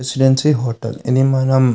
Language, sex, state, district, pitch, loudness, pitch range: Telugu, male, Andhra Pradesh, Anantapur, 130 Hz, -16 LUFS, 125-135 Hz